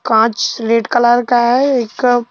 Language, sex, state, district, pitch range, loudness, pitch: Hindi, male, Madhya Pradesh, Bhopal, 230-245 Hz, -13 LUFS, 240 Hz